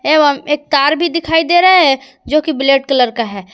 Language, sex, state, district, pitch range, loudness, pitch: Hindi, female, Jharkhand, Palamu, 270-320 Hz, -12 LUFS, 295 Hz